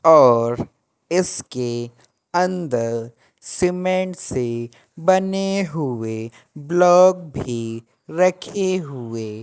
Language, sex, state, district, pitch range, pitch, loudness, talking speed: Hindi, male, Madhya Pradesh, Katni, 120-180 Hz, 140 Hz, -20 LUFS, 70 wpm